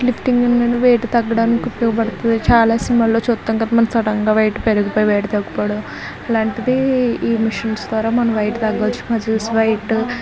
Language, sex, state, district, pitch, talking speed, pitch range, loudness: Telugu, female, Andhra Pradesh, Visakhapatnam, 225 Hz, 140 wpm, 220-235 Hz, -17 LUFS